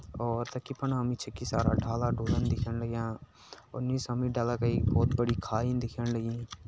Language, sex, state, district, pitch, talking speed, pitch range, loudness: Garhwali, male, Uttarakhand, Tehri Garhwal, 120 Hz, 110 wpm, 115-120 Hz, -31 LUFS